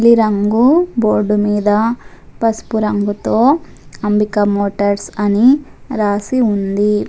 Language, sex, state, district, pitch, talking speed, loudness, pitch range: Telugu, female, Telangana, Adilabad, 210 Hz, 95 wpm, -15 LUFS, 205-230 Hz